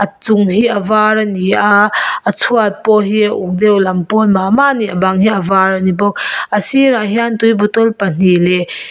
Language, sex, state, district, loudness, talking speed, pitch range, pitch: Mizo, female, Mizoram, Aizawl, -12 LUFS, 215 wpm, 190-220 Hz, 210 Hz